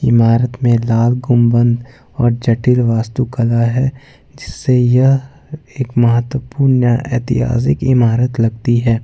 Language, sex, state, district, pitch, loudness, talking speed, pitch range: Hindi, male, Jharkhand, Ranchi, 120 Hz, -14 LUFS, 115 wpm, 120-130 Hz